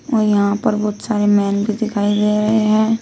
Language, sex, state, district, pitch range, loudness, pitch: Hindi, female, Uttar Pradesh, Shamli, 205-220 Hz, -16 LUFS, 210 Hz